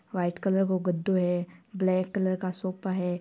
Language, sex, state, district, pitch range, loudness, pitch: Marwari, female, Rajasthan, Churu, 180-190 Hz, -28 LUFS, 185 Hz